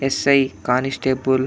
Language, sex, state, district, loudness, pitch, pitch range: Telugu, male, Andhra Pradesh, Anantapur, -19 LUFS, 130 Hz, 130-135 Hz